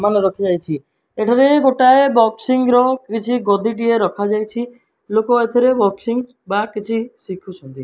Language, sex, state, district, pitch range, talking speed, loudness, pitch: Odia, male, Odisha, Malkangiri, 205-245 Hz, 100 wpm, -16 LUFS, 225 Hz